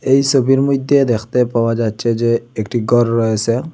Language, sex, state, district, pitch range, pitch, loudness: Bengali, male, Assam, Hailakandi, 115-135 Hz, 120 Hz, -15 LUFS